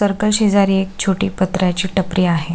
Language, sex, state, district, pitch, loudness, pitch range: Marathi, female, Maharashtra, Solapur, 190 Hz, -17 LUFS, 185-200 Hz